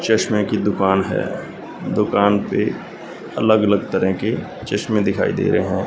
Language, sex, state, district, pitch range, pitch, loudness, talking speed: Hindi, male, Punjab, Fazilka, 95-105 Hz, 100 Hz, -19 LUFS, 155 wpm